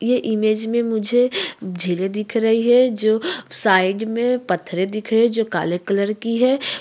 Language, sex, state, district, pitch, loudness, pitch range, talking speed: Hindi, female, Uttarakhand, Tehri Garhwal, 220 Hz, -19 LUFS, 195-235 Hz, 175 wpm